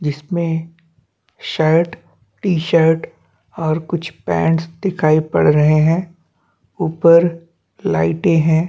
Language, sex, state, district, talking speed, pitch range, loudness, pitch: Hindi, male, Chhattisgarh, Bastar, 95 wpm, 155-170 Hz, -16 LUFS, 165 Hz